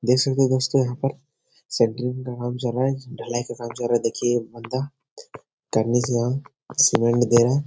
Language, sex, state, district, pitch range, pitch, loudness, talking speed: Hindi, male, Bihar, Jahanabad, 120-135 Hz, 125 Hz, -23 LUFS, 210 wpm